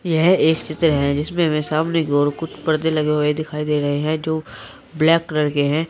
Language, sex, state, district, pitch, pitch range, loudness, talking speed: Hindi, male, Uttar Pradesh, Saharanpur, 155 Hz, 150-160 Hz, -19 LUFS, 225 wpm